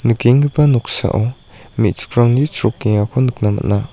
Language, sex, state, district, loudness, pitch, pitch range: Garo, male, Meghalaya, North Garo Hills, -14 LUFS, 120 Hz, 110-130 Hz